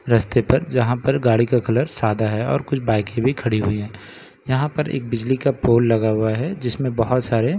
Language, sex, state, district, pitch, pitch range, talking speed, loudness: Hindi, male, Bihar, Katihar, 120 Hz, 110-130 Hz, 230 wpm, -20 LUFS